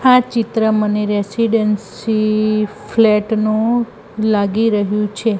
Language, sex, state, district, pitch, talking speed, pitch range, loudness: Gujarati, female, Gujarat, Gandhinagar, 215 Hz, 100 wpm, 210-225 Hz, -16 LUFS